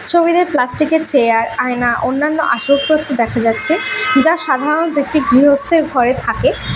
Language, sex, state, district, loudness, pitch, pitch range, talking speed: Bengali, female, West Bengal, Alipurduar, -14 LUFS, 285 Hz, 250-315 Hz, 135 wpm